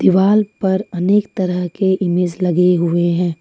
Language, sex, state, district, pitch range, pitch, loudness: Hindi, female, Jharkhand, Ranchi, 175-190 Hz, 180 Hz, -16 LUFS